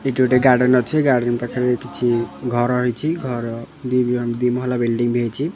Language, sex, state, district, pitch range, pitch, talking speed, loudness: Odia, male, Odisha, Khordha, 120-125 Hz, 125 Hz, 185 wpm, -19 LUFS